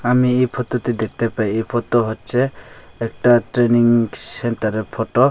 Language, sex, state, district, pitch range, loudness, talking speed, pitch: Bengali, male, Tripura, West Tripura, 115-125 Hz, -18 LUFS, 170 wpm, 120 Hz